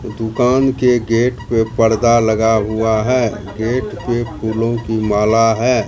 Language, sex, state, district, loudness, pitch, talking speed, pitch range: Hindi, male, Bihar, Katihar, -16 LUFS, 115 Hz, 145 wpm, 110-120 Hz